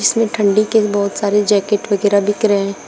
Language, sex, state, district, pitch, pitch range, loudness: Hindi, female, Uttar Pradesh, Shamli, 205 Hz, 200-215 Hz, -15 LUFS